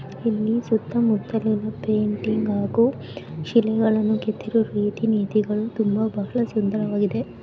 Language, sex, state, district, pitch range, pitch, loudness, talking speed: Kannada, male, Karnataka, Bijapur, 210-225 Hz, 215 Hz, -22 LUFS, 90 wpm